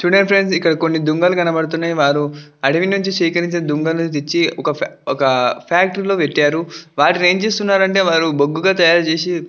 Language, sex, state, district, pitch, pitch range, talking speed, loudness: Telugu, male, Telangana, Nalgonda, 170 Hz, 155-180 Hz, 135 wpm, -16 LUFS